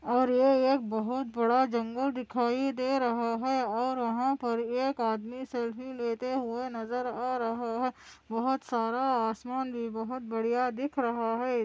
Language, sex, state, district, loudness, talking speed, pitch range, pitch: Hindi, female, Andhra Pradesh, Anantapur, -30 LUFS, 160 wpm, 230-260 Hz, 245 Hz